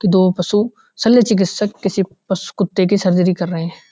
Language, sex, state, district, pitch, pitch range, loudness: Hindi, male, Uttarakhand, Uttarkashi, 190 Hz, 180-205 Hz, -17 LUFS